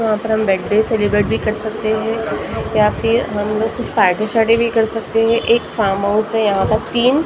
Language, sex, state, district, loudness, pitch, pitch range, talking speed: Hindi, female, Maharashtra, Gondia, -16 LUFS, 220 Hz, 205-225 Hz, 230 wpm